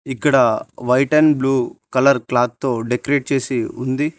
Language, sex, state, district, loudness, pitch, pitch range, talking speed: Telugu, male, Telangana, Mahabubabad, -18 LUFS, 130 Hz, 125-140 Hz, 145 wpm